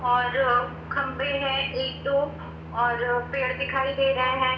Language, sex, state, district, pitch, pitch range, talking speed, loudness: Hindi, female, Chhattisgarh, Bilaspur, 260 Hz, 245-275 Hz, 130 wpm, -25 LUFS